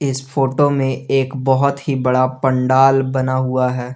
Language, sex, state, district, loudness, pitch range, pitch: Hindi, male, Jharkhand, Garhwa, -16 LUFS, 130-135 Hz, 130 Hz